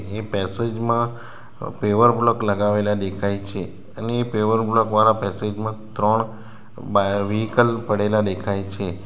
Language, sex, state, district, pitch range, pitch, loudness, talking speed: Gujarati, male, Gujarat, Valsad, 100-115 Hz, 105 Hz, -21 LUFS, 140 wpm